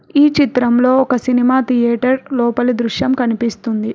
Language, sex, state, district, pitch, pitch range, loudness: Telugu, female, Telangana, Hyderabad, 250 Hz, 235-260 Hz, -15 LUFS